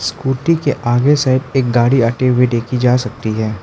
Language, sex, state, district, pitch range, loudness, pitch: Hindi, male, Arunachal Pradesh, Lower Dibang Valley, 120-135 Hz, -15 LUFS, 125 Hz